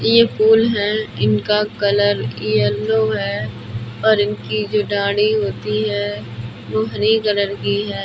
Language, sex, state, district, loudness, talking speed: Hindi, female, Uttar Pradesh, Budaun, -18 LUFS, 135 wpm